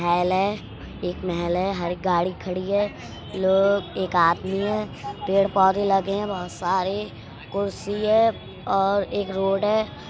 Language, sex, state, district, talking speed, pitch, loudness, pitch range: Hindi, male, Uttar Pradesh, Budaun, 155 wpm, 195 Hz, -23 LUFS, 180-200 Hz